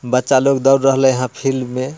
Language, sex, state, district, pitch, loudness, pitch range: Bhojpuri, male, Bihar, Muzaffarpur, 130 Hz, -15 LUFS, 130-135 Hz